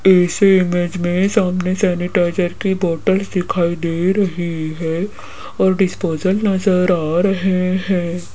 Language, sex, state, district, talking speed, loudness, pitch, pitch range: Hindi, female, Rajasthan, Jaipur, 120 wpm, -17 LUFS, 180 Hz, 175-190 Hz